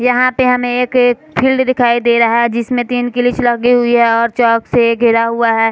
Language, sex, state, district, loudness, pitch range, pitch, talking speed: Hindi, female, Bihar, Sitamarhi, -12 LUFS, 235-250 Hz, 240 Hz, 210 wpm